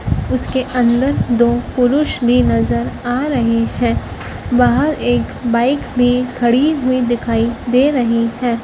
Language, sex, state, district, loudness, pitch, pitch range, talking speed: Hindi, female, Madhya Pradesh, Dhar, -15 LUFS, 245 Hz, 235-255 Hz, 130 wpm